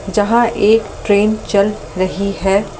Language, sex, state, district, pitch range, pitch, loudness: Hindi, male, Delhi, New Delhi, 195-215 Hz, 205 Hz, -15 LUFS